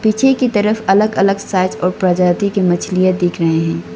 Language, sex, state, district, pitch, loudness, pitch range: Hindi, female, Arunachal Pradesh, Lower Dibang Valley, 185 Hz, -15 LUFS, 175-210 Hz